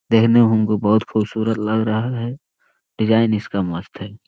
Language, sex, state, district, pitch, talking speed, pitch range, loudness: Hindi, male, Bihar, Jamui, 110 Hz, 170 wpm, 105-115 Hz, -18 LUFS